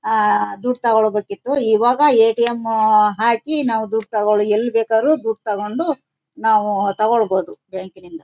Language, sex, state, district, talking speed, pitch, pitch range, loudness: Kannada, female, Karnataka, Shimoga, 145 wpm, 220 Hz, 210-235 Hz, -17 LUFS